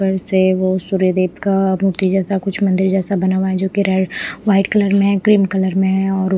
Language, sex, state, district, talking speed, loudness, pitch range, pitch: Hindi, female, Punjab, Pathankot, 225 wpm, -16 LUFS, 190-195 Hz, 190 Hz